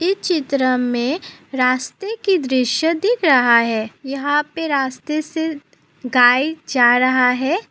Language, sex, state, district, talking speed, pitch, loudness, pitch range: Hindi, female, Assam, Sonitpur, 125 wpm, 275 Hz, -17 LUFS, 250-320 Hz